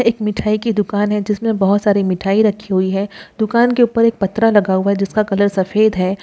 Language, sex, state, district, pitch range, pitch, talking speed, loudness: Hindi, female, Bihar, Jahanabad, 195-220 Hz, 205 Hz, 230 wpm, -16 LUFS